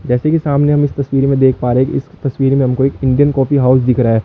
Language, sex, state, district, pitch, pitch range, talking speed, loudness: Hindi, male, Chandigarh, Chandigarh, 135 Hz, 130-140 Hz, 310 wpm, -13 LUFS